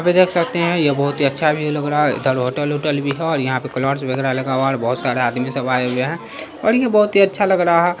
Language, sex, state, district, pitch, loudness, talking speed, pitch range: Hindi, male, Bihar, Saharsa, 145 Hz, -18 LUFS, 290 wpm, 130-170 Hz